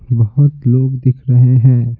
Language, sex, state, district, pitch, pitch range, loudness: Hindi, male, Bihar, Patna, 125 Hz, 120-130 Hz, -12 LUFS